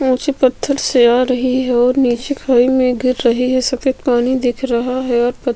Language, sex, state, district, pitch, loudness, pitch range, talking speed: Hindi, female, Chhattisgarh, Sukma, 255 Hz, -15 LUFS, 245-260 Hz, 215 wpm